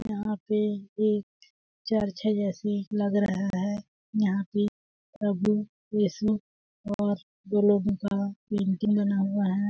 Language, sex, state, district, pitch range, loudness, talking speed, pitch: Hindi, female, Chhattisgarh, Balrampur, 200-210 Hz, -28 LUFS, 130 wpm, 205 Hz